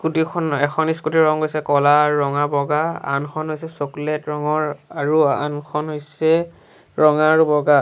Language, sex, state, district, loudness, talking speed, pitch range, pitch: Assamese, male, Assam, Sonitpur, -19 LUFS, 140 wpm, 145-160 Hz, 150 Hz